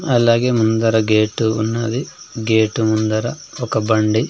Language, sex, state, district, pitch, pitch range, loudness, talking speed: Telugu, male, Andhra Pradesh, Sri Satya Sai, 110 Hz, 110-120 Hz, -17 LUFS, 110 wpm